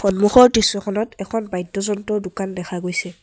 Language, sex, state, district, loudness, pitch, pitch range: Assamese, male, Assam, Sonitpur, -19 LUFS, 200 Hz, 185-210 Hz